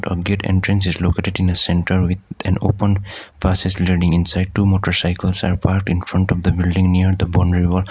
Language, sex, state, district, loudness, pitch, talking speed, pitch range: English, male, Sikkim, Gangtok, -17 LUFS, 95 Hz, 190 wpm, 90-95 Hz